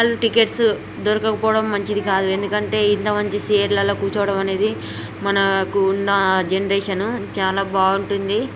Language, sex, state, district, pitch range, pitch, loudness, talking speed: Telugu, female, Telangana, Karimnagar, 195-210 Hz, 200 Hz, -19 LUFS, 135 wpm